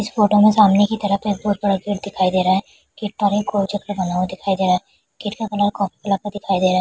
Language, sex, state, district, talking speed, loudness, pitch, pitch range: Hindi, female, Bihar, Kishanganj, 185 wpm, -19 LUFS, 205 Hz, 190-205 Hz